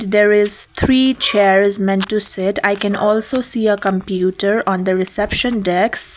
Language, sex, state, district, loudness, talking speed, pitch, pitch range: English, female, Sikkim, Gangtok, -16 LUFS, 165 wpm, 205 Hz, 195-215 Hz